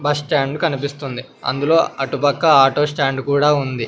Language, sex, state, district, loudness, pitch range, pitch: Telugu, male, Andhra Pradesh, Sri Satya Sai, -17 LUFS, 135-150 Hz, 145 Hz